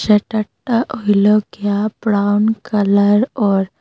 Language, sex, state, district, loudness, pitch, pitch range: Bengali, female, Assam, Hailakandi, -16 LUFS, 210 Hz, 205-220 Hz